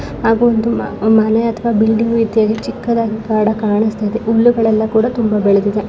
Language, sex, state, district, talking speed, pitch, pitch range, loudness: Kannada, female, Karnataka, Bellary, 145 wpm, 220 Hz, 215-230 Hz, -14 LUFS